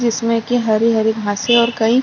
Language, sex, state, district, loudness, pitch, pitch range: Hindi, female, Chhattisgarh, Bilaspur, -16 LUFS, 230 Hz, 220-235 Hz